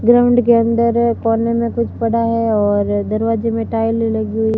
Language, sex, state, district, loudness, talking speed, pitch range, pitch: Hindi, female, Rajasthan, Barmer, -16 LUFS, 185 wpm, 220-235 Hz, 230 Hz